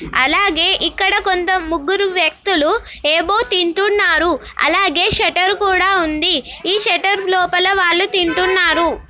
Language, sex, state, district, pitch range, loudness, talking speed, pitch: Telugu, female, Telangana, Nalgonda, 340-390 Hz, -14 LUFS, 105 wpm, 370 Hz